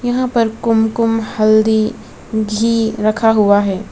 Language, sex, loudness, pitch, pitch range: Hindi, female, -15 LUFS, 220 Hz, 215-230 Hz